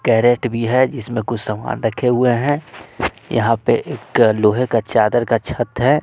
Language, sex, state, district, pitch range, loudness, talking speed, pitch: Hindi, male, Bihar, West Champaran, 115-125 Hz, -17 LUFS, 180 wpm, 120 Hz